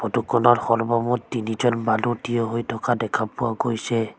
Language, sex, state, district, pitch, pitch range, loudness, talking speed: Assamese, female, Assam, Sonitpur, 115 Hz, 115-120 Hz, -22 LUFS, 160 wpm